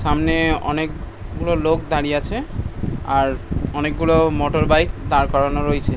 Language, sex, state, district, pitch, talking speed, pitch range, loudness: Bengali, male, West Bengal, North 24 Parganas, 145 Hz, 120 wpm, 135-155 Hz, -19 LUFS